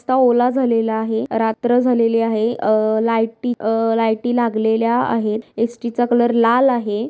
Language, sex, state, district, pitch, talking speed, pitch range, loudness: Marathi, female, Maharashtra, Aurangabad, 230 Hz, 150 wpm, 225-240 Hz, -17 LUFS